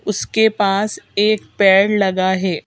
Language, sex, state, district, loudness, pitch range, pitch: Hindi, female, Madhya Pradesh, Bhopal, -16 LUFS, 190-210 Hz, 200 Hz